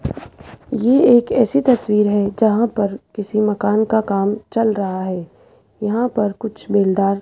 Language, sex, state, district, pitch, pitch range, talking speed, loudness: Hindi, female, Rajasthan, Jaipur, 210 Hz, 200-230 Hz, 160 wpm, -17 LUFS